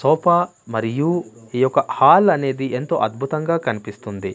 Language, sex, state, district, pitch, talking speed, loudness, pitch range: Telugu, male, Andhra Pradesh, Manyam, 135 Hz, 125 wpm, -19 LUFS, 115-165 Hz